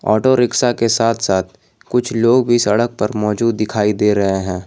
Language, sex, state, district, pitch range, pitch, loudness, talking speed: Hindi, male, Jharkhand, Garhwa, 105-120 Hz, 110 Hz, -16 LUFS, 195 wpm